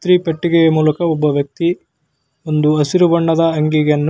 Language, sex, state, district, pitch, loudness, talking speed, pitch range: Kannada, male, Karnataka, Belgaum, 155 Hz, -15 LUFS, 115 wpm, 150-170 Hz